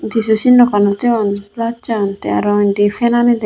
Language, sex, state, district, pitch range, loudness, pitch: Chakma, female, Tripura, Unakoti, 205-235 Hz, -14 LUFS, 220 Hz